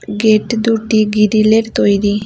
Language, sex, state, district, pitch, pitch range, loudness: Bengali, female, West Bengal, Cooch Behar, 215 Hz, 210-225 Hz, -13 LUFS